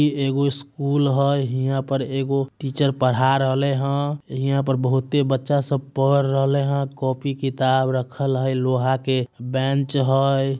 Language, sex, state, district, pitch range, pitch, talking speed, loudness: Magahi, male, Bihar, Samastipur, 130-140 Hz, 135 Hz, 155 wpm, -21 LUFS